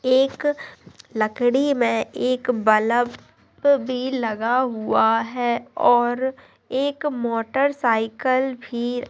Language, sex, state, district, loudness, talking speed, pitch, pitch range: Hindi, female, Andhra Pradesh, Chittoor, -21 LUFS, 85 wpm, 245 Hz, 230-265 Hz